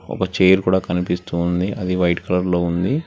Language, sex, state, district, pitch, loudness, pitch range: Telugu, male, Telangana, Hyderabad, 90 Hz, -19 LUFS, 90-95 Hz